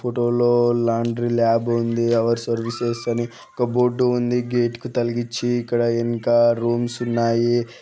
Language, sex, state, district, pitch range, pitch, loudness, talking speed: Telugu, male, Andhra Pradesh, Guntur, 115-120 Hz, 120 Hz, -21 LUFS, 140 wpm